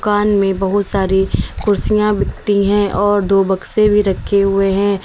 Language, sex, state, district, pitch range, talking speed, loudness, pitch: Hindi, female, Uttar Pradesh, Lalitpur, 195-205 Hz, 165 wpm, -15 LUFS, 200 Hz